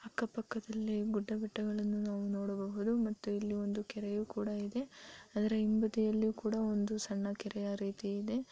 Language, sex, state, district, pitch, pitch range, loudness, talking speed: Kannada, female, Karnataka, Chamarajanagar, 210 Hz, 205-220 Hz, -37 LUFS, 140 wpm